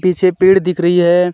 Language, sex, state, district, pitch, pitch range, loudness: Hindi, male, Jharkhand, Deoghar, 180 Hz, 175-185 Hz, -12 LUFS